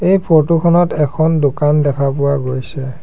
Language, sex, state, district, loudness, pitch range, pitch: Assamese, male, Assam, Sonitpur, -14 LUFS, 140-160 Hz, 150 Hz